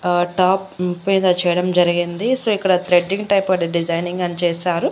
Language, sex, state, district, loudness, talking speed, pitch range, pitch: Telugu, female, Andhra Pradesh, Annamaya, -18 LUFS, 160 wpm, 175-190 Hz, 180 Hz